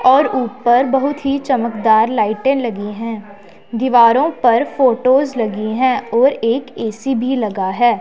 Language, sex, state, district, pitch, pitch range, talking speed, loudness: Hindi, female, Punjab, Pathankot, 240 Hz, 225-265 Hz, 140 wpm, -15 LUFS